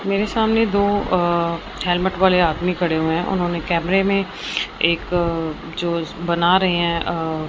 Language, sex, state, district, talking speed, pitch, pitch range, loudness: Hindi, female, Punjab, Fazilka, 160 wpm, 175 Hz, 170-190 Hz, -19 LUFS